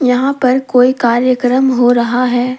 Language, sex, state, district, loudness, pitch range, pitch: Hindi, female, Jharkhand, Deoghar, -12 LUFS, 245-255 Hz, 250 Hz